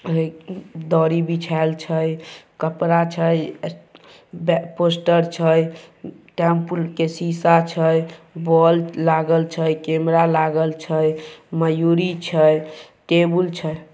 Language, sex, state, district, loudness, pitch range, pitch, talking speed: Maithili, male, Bihar, Samastipur, -19 LUFS, 160-170 Hz, 165 Hz, 95 wpm